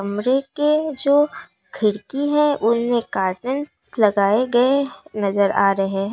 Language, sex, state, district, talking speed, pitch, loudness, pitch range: Hindi, female, Assam, Kamrup Metropolitan, 125 wpm, 240 Hz, -19 LUFS, 200-280 Hz